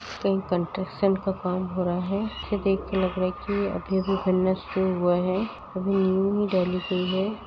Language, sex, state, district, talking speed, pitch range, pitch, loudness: Hindi, female, Uttar Pradesh, Muzaffarnagar, 200 wpm, 185-195 Hz, 190 Hz, -26 LUFS